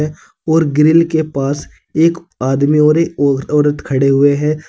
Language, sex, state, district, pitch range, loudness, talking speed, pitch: Hindi, male, Uttar Pradesh, Saharanpur, 140-160 Hz, -14 LUFS, 165 wpm, 150 Hz